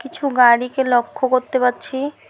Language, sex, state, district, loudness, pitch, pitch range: Bengali, female, West Bengal, Alipurduar, -17 LUFS, 255 Hz, 250-270 Hz